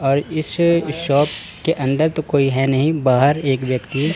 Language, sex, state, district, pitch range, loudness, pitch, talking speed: Hindi, male, Chandigarh, Chandigarh, 135-155 Hz, -18 LUFS, 145 Hz, 175 wpm